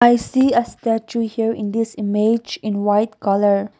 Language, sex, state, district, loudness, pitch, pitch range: English, female, Nagaland, Kohima, -19 LUFS, 225 Hz, 205-230 Hz